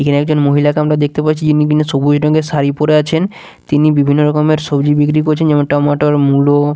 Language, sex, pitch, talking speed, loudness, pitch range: Bengali, male, 150 Hz, 205 wpm, -12 LUFS, 145-155 Hz